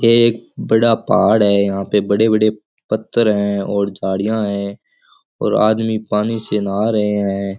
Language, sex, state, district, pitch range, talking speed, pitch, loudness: Rajasthani, male, Rajasthan, Churu, 100-110 Hz, 165 wpm, 105 Hz, -16 LUFS